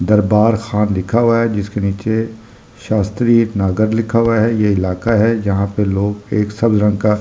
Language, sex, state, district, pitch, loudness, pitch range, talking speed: Hindi, male, Delhi, New Delhi, 105 Hz, -15 LUFS, 100-115 Hz, 175 wpm